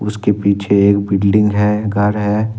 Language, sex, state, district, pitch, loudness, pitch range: Hindi, male, Jharkhand, Ranchi, 105 Hz, -14 LUFS, 100-105 Hz